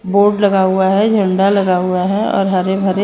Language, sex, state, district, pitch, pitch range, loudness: Hindi, female, Maharashtra, Mumbai Suburban, 195 Hz, 185-200 Hz, -14 LUFS